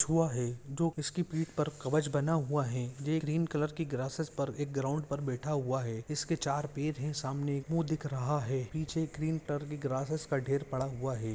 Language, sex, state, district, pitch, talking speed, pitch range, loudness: Hindi, male, Jharkhand, Sahebganj, 145 Hz, 215 wpm, 135-155 Hz, -34 LUFS